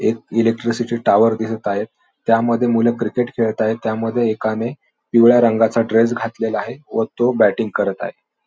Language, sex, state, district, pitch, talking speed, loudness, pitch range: Marathi, male, Maharashtra, Aurangabad, 115 Hz, 155 wpm, -18 LUFS, 110-120 Hz